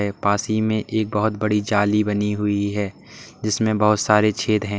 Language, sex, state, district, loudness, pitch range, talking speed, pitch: Hindi, male, Uttar Pradesh, Lalitpur, -21 LUFS, 105-110 Hz, 185 wpm, 105 Hz